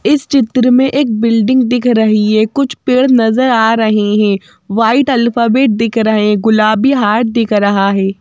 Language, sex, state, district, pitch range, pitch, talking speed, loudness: Hindi, female, Madhya Pradesh, Bhopal, 215-250 Hz, 225 Hz, 175 wpm, -11 LUFS